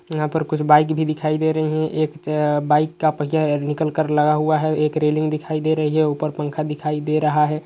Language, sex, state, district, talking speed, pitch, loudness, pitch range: Hindi, male, Uttar Pradesh, Etah, 235 wpm, 155 Hz, -20 LUFS, 150-155 Hz